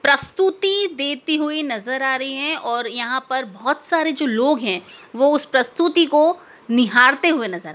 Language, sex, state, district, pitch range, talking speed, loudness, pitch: Hindi, female, Madhya Pradesh, Dhar, 245-310 Hz, 170 wpm, -19 LUFS, 280 Hz